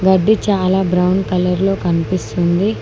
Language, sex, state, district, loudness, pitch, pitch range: Telugu, female, Telangana, Mahabubabad, -16 LUFS, 185 Hz, 180-195 Hz